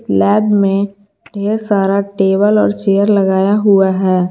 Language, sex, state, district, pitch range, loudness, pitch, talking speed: Hindi, female, Jharkhand, Garhwa, 190-205 Hz, -13 LUFS, 200 Hz, 155 wpm